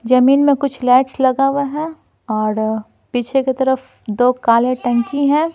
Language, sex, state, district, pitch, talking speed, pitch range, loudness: Hindi, female, Bihar, Patna, 260 Hz, 160 wpm, 240-275 Hz, -16 LUFS